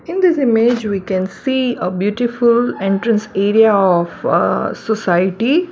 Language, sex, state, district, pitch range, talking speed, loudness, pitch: English, female, Gujarat, Valsad, 195-240 Hz, 135 wpm, -16 LUFS, 220 Hz